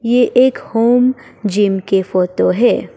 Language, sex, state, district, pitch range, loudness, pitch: Hindi, female, Arunachal Pradesh, Papum Pare, 190-245 Hz, -14 LUFS, 225 Hz